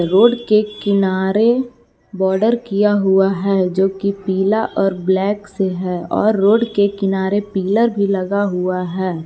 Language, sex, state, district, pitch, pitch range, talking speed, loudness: Hindi, female, Jharkhand, Palamu, 195 Hz, 190-210 Hz, 150 wpm, -17 LUFS